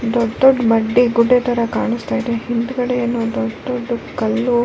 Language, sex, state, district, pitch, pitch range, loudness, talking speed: Kannada, female, Karnataka, Raichur, 240 Hz, 230-245 Hz, -17 LUFS, 140 wpm